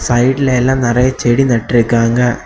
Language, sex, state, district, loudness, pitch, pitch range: Tamil, male, Tamil Nadu, Kanyakumari, -12 LUFS, 125 Hz, 120-130 Hz